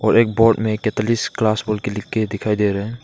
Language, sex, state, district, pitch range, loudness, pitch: Hindi, male, Arunachal Pradesh, Papum Pare, 105-115 Hz, -19 LUFS, 110 Hz